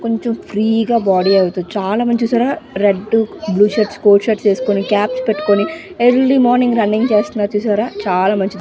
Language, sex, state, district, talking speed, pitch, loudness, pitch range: Telugu, female, Andhra Pradesh, Visakhapatnam, 155 wpm, 215 Hz, -15 LUFS, 205-235 Hz